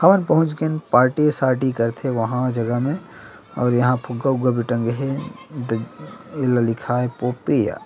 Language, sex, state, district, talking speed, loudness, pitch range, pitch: Chhattisgarhi, male, Chhattisgarh, Rajnandgaon, 150 wpm, -20 LUFS, 120-140 Hz, 125 Hz